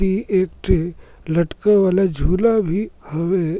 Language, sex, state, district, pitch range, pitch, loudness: Surgujia, male, Chhattisgarh, Sarguja, 170-200 Hz, 190 Hz, -19 LUFS